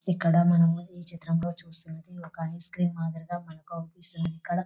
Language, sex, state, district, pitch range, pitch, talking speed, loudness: Telugu, female, Telangana, Nalgonda, 165-175 Hz, 170 Hz, 180 wpm, -28 LUFS